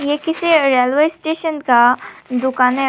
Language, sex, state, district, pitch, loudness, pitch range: Hindi, female, Tripura, Unakoti, 275 Hz, -16 LUFS, 250-320 Hz